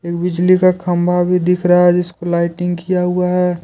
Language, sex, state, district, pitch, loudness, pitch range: Hindi, male, Jharkhand, Deoghar, 180 Hz, -15 LUFS, 175-180 Hz